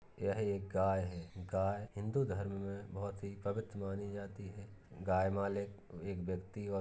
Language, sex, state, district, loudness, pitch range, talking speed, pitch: Hindi, male, Uttar Pradesh, Jalaun, -40 LUFS, 95-100 Hz, 175 wpm, 100 Hz